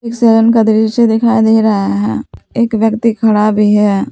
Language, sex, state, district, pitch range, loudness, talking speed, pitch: Hindi, female, Jharkhand, Palamu, 210-230 Hz, -11 LUFS, 190 wpm, 220 Hz